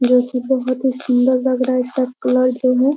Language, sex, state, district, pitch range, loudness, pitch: Hindi, female, Bihar, Muzaffarpur, 250-260 Hz, -17 LUFS, 255 Hz